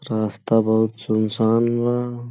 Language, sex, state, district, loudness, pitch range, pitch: Bhojpuri, male, Uttar Pradesh, Gorakhpur, -20 LUFS, 110-120 Hz, 115 Hz